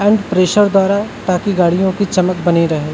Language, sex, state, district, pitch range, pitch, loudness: Hindi, male, Uttarakhand, Uttarkashi, 175-200 Hz, 190 Hz, -14 LUFS